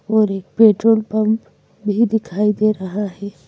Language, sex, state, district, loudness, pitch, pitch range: Hindi, female, Madhya Pradesh, Bhopal, -17 LUFS, 215 Hz, 200-220 Hz